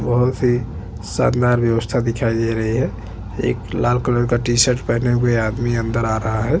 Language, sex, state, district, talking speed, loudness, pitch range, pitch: Hindi, male, Chhattisgarh, Bastar, 190 wpm, -19 LUFS, 115-120 Hz, 120 Hz